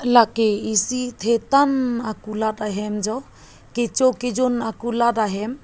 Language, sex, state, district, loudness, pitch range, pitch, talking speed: Karbi, female, Assam, Karbi Anglong, -21 LUFS, 215-250 Hz, 235 Hz, 105 wpm